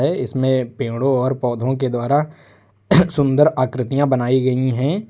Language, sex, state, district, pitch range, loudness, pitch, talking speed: Hindi, male, Uttar Pradesh, Lucknow, 125-145 Hz, -18 LUFS, 130 Hz, 130 wpm